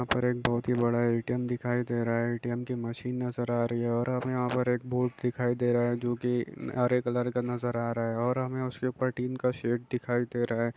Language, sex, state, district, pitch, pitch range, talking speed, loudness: Hindi, male, Chhattisgarh, Balrampur, 120 Hz, 120-125 Hz, 260 wpm, -30 LUFS